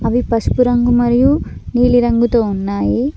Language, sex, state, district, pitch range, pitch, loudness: Telugu, female, Telangana, Mahabubabad, 230-245 Hz, 240 Hz, -14 LUFS